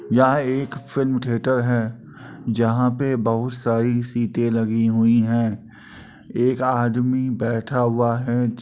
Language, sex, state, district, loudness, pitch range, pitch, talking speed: Hindi, male, Uttar Pradesh, Jyotiba Phule Nagar, -21 LUFS, 115-130 Hz, 120 Hz, 140 wpm